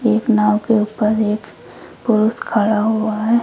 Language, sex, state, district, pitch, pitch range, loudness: Hindi, female, Uttar Pradesh, Lucknow, 215 Hz, 210-225 Hz, -17 LUFS